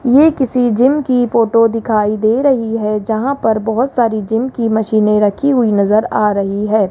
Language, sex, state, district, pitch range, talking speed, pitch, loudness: Hindi, male, Rajasthan, Jaipur, 215-250 Hz, 190 wpm, 225 Hz, -14 LUFS